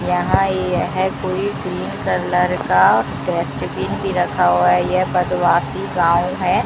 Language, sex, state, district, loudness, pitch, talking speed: Hindi, female, Rajasthan, Bikaner, -18 LUFS, 180 Hz, 135 wpm